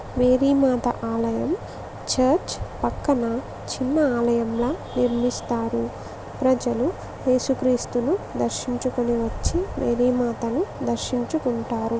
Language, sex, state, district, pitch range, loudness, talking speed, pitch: Telugu, female, Andhra Pradesh, Visakhapatnam, 235-260 Hz, -23 LUFS, 70 wpm, 245 Hz